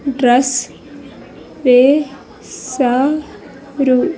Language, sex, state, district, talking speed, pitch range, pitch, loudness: Telugu, female, Andhra Pradesh, Sri Satya Sai, 55 wpm, 255-280 Hz, 270 Hz, -14 LUFS